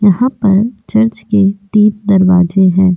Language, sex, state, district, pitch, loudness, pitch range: Hindi, female, Goa, North and South Goa, 200 Hz, -11 LUFS, 190-215 Hz